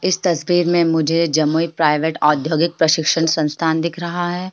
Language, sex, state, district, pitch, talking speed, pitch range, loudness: Hindi, female, Bihar, Jamui, 165 Hz, 160 wpm, 160-170 Hz, -17 LUFS